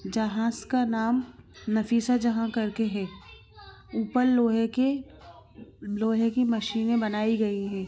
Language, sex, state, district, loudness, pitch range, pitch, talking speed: Hindi, female, Chhattisgarh, Bilaspur, -26 LUFS, 215-235 Hz, 225 Hz, 120 wpm